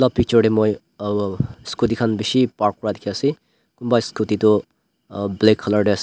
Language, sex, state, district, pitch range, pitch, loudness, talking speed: Nagamese, male, Nagaland, Dimapur, 105-120 Hz, 110 Hz, -20 LUFS, 200 wpm